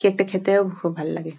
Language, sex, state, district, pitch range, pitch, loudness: Bengali, female, West Bengal, Dakshin Dinajpur, 170-195 Hz, 190 Hz, -22 LUFS